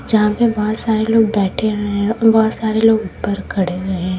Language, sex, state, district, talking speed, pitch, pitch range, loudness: Hindi, female, Uttar Pradesh, Lalitpur, 215 wpm, 215 Hz, 205-220 Hz, -16 LUFS